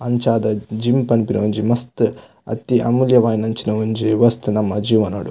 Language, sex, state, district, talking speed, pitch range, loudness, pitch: Tulu, male, Karnataka, Dakshina Kannada, 125 wpm, 105-120 Hz, -18 LUFS, 110 Hz